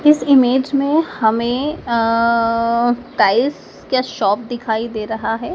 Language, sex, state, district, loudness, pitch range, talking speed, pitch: Hindi, female, Madhya Pradesh, Dhar, -17 LUFS, 230-265 Hz, 130 wpm, 240 Hz